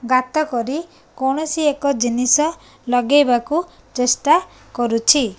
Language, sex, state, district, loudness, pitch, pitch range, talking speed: Odia, female, Odisha, Nuapada, -18 LUFS, 275 Hz, 245-310 Hz, 100 wpm